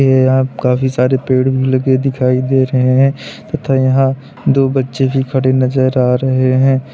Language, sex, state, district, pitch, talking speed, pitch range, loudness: Hindi, male, Uttar Pradesh, Lalitpur, 130 Hz, 180 wpm, 130-135 Hz, -13 LUFS